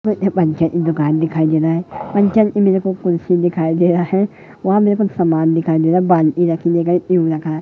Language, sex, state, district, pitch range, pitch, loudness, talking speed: Hindi, male, Madhya Pradesh, Katni, 160-190 Hz, 175 Hz, -16 LUFS, 250 wpm